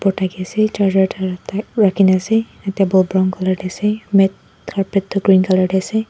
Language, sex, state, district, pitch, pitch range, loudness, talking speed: Nagamese, female, Nagaland, Dimapur, 195 Hz, 185-205 Hz, -17 LUFS, 165 wpm